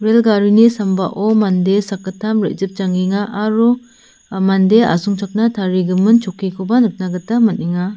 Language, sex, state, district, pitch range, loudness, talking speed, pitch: Garo, female, Meghalaya, South Garo Hills, 190-220 Hz, -15 LUFS, 115 wpm, 205 Hz